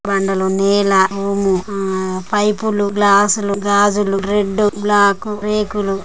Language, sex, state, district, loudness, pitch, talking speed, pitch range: Telugu, female, Andhra Pradesh, Chittoor, -16 LUFS, 200 Hz, 110 wpm, 195-205 Hz